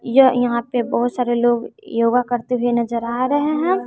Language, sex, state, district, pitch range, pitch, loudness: Hindi, female, Bihar, West Champaran, 235-255 Hz, 245 Hz, -19 LUFS